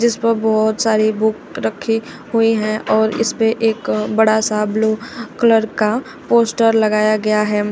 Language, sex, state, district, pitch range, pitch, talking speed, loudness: Hindi, female, Uttar Pradesh, Shamli, 215-225 Hz, 220 Hz, 155 wpm, -16 LUFS